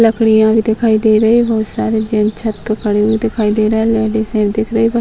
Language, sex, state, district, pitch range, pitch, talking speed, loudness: Hindi, female, Bihar, Muzaffarpur, 215-225 Hz, 220 Hz, 285 wpm, -13 LUFS